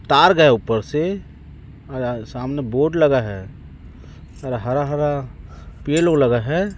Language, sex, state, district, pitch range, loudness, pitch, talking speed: Hindi, male, Chhattisgarh, Raipur, 100-145 Hz, -19 LUFS, 125 Hz, 135 wpm